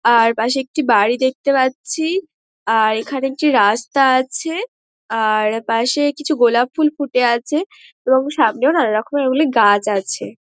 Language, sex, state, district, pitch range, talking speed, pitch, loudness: Bengali, female, West Bengal, Dakshin Dinajpur, 225-300 Hz, 140 wpm, 260 Hz, -17 LUFS